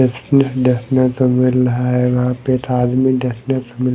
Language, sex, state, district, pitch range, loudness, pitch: Hindi, male, Odisha, Malkangiri, 125-130 Hz, -16 LUFS, 125 Hz